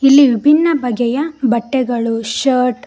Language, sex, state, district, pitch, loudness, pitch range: Kannada, female, Karnataka, Koppal, 250 Hz, -14 LUFS, 240-280 Hz